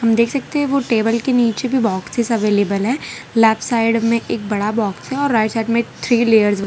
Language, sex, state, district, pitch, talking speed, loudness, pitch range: Hindi, female, Gujarat, Valsad, 230 Hz, 235 wpm, -17 LUFS, 220-240 Hz